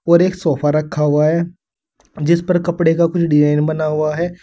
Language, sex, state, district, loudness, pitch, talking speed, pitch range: Hindi, male, Uttar Pradesh, Saharanpur, -16 LUFS, 165 Hz, 205 wpm, 150-175 Hz